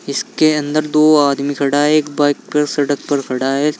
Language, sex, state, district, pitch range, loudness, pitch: Hindi, male, Uttar Pradesh, Saharanpur, 140-150 Hz, -15 LUFS, 145 Hz